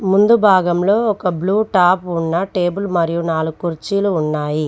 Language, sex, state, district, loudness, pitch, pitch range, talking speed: Telugu, female, Telangana, Mahabubabad, -16 LUFS, 180 Hz, 165-200 Hz, 140 wpm